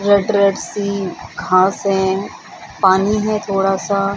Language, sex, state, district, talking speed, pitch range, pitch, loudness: Hindi, female, Bihar, Samastipur, 130 wpm, 195-205 Hz, 200 Hz, -16 LUFS